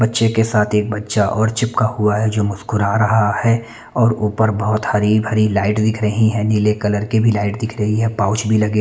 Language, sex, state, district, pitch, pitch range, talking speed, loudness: Hindi, male, Chandigarh, Chandigarh, 110 Hz, 105-110 Hz, 225 wpm, -17 LUFS